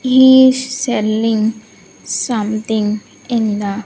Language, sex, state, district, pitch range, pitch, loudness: English, female, Andhra Pradesh, Sri Satya Sai, 215-255 Hz, 225 Hz, -14 LUFS